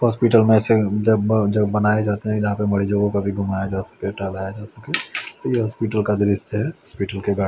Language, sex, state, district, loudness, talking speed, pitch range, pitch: Hindi, male, Chandigarh, Chandigarh, -20 LUFS, 215 wpm, 100-110 Hz, 105 Hz